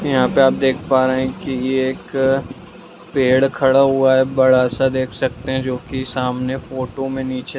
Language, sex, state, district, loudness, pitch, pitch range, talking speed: Magahi, male, Bihar, Gaya, -17 LUFS, 130 Hz, 130-135 Hz, 200 wpm